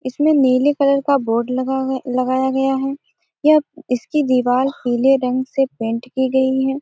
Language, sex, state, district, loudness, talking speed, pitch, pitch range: Hindi, female, Bihar, Gopalganj, -18 LUFS, 175 wpm, 265 Hz, 255-275 Hz